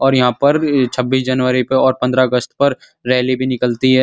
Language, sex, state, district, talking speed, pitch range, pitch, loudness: Hindi, male, Uttar Pradesh, Muzaffarnagar, 210 wpm, 125-130 Hz, 130 Hz, -15 LUFS